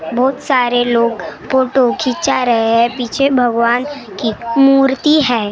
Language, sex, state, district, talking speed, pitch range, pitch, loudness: Hindi, female, Maharashtra, Gondia, 130 wpm, 235-270 Hz, 245 Hz, -14 LUFS